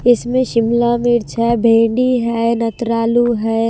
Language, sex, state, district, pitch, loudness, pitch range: Hindi, female, Himachal Pradesh, Shimla, 235 Hz, -15 LUFS, 230-240 Hz